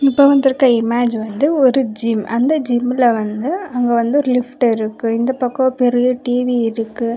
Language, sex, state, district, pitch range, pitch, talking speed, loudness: Tamil, female, Karnataka, Bangalore, 230-260 Hz, 245 Hz, 160 wpm, -16 LUFS